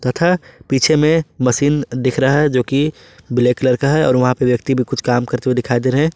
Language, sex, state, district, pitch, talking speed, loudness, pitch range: Hindi, male, Jharkhand, Ranchi, 130 Hz, 255 wpm, -16 LUFS, 125-150 Hz